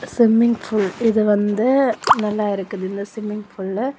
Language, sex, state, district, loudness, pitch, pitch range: Tamil, female, Tamil Nadu, Kanyakumari, -19 LUFS, 210 Hz, 200-230 Hz